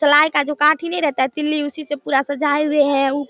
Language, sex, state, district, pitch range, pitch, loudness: Hindi, female, Bihar, Darbhanga, 285-300 Hz, 290 Hz, -18 LUFS